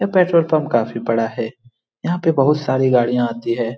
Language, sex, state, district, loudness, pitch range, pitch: Hindi, male, Bihar, Lakhisarai, -18 LUFS, 115-155 Hz, 125 Hz